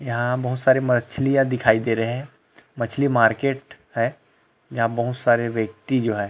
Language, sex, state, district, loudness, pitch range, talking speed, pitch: Hindi, male, Chhattisgarh, Rajnandgaon, -22 LUFS, 115-130 Hz, 160 wpm, 120 Hz